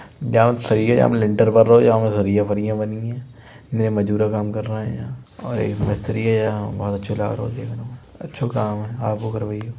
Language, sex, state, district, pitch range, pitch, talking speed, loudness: Hindi, male, Uttar Pradesh, Budaun, 105-120 Hz, 110 Hz, 220 wpm, -20 LUFS